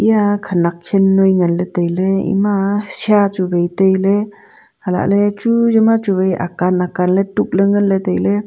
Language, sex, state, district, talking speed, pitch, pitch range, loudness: Wancho, female, Arunachal Pradesh, Longding, 150 wpm, 195 Hz, 180-205 Hz, -15 LUFS